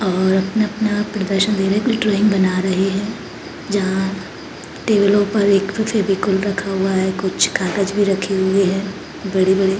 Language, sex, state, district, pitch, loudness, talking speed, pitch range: Hindi, male, Uttarakhand, Tehri Garhwal, 195 Hz, -18 LUFS, 165 wpm, 190-205 Hz